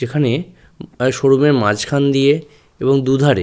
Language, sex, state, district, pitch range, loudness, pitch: Bengali, male, West Bengal, Purulia, 130-145 Hz, -16 LUFS, 135 Hz